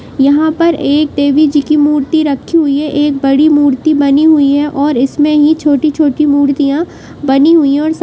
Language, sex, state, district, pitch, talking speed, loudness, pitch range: Hindi, female, Uttar Pradesh, Jyotiba Phule Nagar, 295 Hz, 195 wpm, -10 LUFS, 285-305 Hz